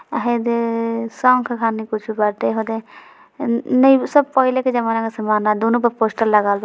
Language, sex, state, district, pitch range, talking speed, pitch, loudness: Hindi, female, Bihar, Gopalganj, 220-255 Hz, 125 wpm, 230 Hz, -18 LUFS